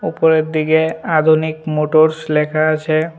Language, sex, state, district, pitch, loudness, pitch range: Bengali, male, Tripura, West Tripura, 155 Hz, -15 LUFS, 155-160 Hz